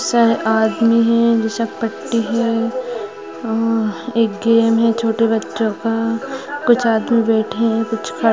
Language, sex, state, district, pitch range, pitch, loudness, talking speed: Hindi, female, Uttar Pradesh, Deoria, 225-230 Hz, 230 Hz, -17 LUFS, 135 wpm